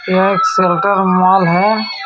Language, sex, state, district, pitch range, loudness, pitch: Hindi, male, Jharkhand, Ranchi, 185-200 Hz, -12 LUFS, 190 Hz